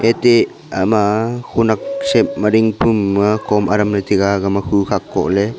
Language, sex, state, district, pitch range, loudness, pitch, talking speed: Wancho, male, Arunachal Pradesh, Longding, 100-115 Hz, -15 LUFS, 105 Hz, 195 wpm